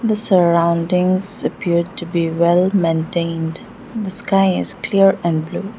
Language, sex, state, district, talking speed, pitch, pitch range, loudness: English, female, Arunachal Pradesh, Lower Dibang Valley, 135 wpm, 180 Hz, 170-195 Hz, -17 LUFS